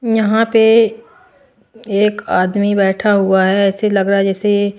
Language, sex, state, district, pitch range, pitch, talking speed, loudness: Hindi, female, Maharashtra, Washim, 195-220 Hz, 205 Hz, 150 wpm, -14 LUFS